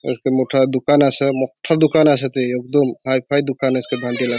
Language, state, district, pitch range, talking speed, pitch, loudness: Bhili, Maharashtra, Dhule, 130-140 Hz, 180 wpm, 130 Hz, -17 LUFS